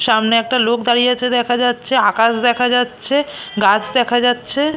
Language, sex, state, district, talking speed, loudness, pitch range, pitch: Bengali, female, West Bengal, Purulia, 165 wpm, -15 LUFS, 230-250 Hz, 245 Hz